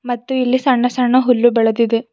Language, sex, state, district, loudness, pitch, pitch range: Kannada, female, Karnataka, Bidar, -15 LUFS, 245 Hz, 230-255 Hz